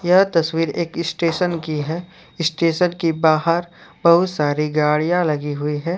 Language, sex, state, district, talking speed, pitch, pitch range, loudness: Hindi, male, Jharkhand, Deoghar, 150 wpm, 165 Hz, 155-175 Hz, -19 LUFS